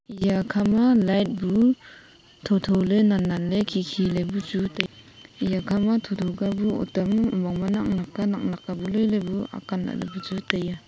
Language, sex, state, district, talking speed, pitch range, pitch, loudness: Wancho, female, Arunachal Pradesh, Longding, 165 wpm, 185-210 Hz, 195 Hz, -24 LUFS